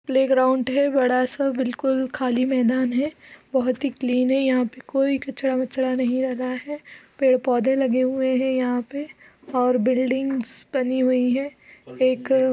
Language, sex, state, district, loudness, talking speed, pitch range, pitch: Hindi, female, Uttar Pradesh, Budaun, -22 LUFS, 155 wpm, 255-270 Hz, 260 Hz